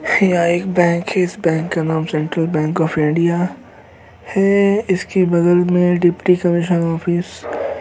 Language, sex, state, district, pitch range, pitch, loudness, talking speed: Hindi, male, Uttar Pradesh, Hamirpur, 165-180 Hz, 175 Hz, -16 LUFS, 155 wpm